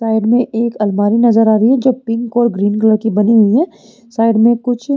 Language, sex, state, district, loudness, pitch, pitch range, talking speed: Hindi, female, Chhattisgarh, Rajnandgaon, -13 LUFS, 225 Hz, 220-240 Hz, 240 wpm